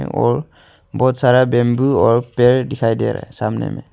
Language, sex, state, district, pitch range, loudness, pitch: Hindi, male, Arunachal Pradesh, Longding, 115-130 Hz, -16 LUFS, 125 Hz